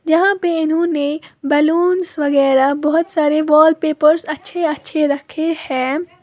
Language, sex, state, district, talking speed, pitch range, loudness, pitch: Hindi, female, Uttar Pradesh, Lalitpur, 105 wpm, 295-330 Hz, -16 LUFS, 310 Hz